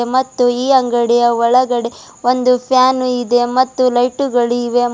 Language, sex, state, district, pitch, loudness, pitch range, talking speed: Kannada, female, Karnataka, Bidar, 245 Hz, -14 LUFS, 240-255 Hz, 120 wpm